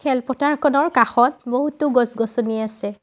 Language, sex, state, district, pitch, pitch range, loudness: Assamese, female, Assam, Sonitpur, 250 Hz, 230-285 Hz, -19 LUFS